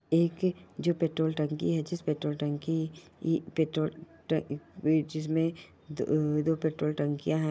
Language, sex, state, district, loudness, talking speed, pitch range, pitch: Hindi, female, Bihar, Purnia, -31 LUFS, 110 wpm, 150-165 Hz, 160 Hz